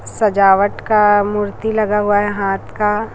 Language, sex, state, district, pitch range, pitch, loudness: Hindi, female, Chhattisgarh, Raipur, 205-215 Hz, 205 Hz, -15 LUFS